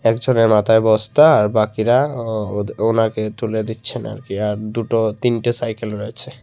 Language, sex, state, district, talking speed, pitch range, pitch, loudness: Bengali, male, Tripura, Unakoti, 160 wpm, 110-115 Hz, 110 Hz, -18 LUFS